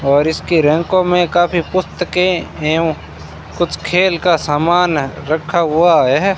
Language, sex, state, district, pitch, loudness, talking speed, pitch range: Hindi, male, Rajasthan, Bikaner, 170 Hz, -15 LUFS, 130 wpm, 150-180 Hz